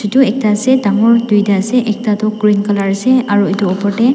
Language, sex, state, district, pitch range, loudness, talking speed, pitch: Nagamese, female, Nagaland, Dimapur, 205-235 Hz, -13 LUFS, 215 wpm, 210 Hz